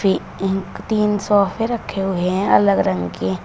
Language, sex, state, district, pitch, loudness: Hindi, female, Uttar Pradesh, Shamli, 195 Hz, -19 LUFS